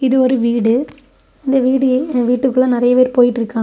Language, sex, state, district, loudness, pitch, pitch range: Tamil, female, Tamil Nadu, Kanyakumari, -14 LUFS, 255 Hz, 245-265 Hz